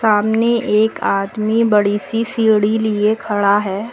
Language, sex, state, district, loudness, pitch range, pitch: Hindi, female, Uttar Pradesh, Lucknow, -16 LUFS, 205-225 Hz, 215 Hz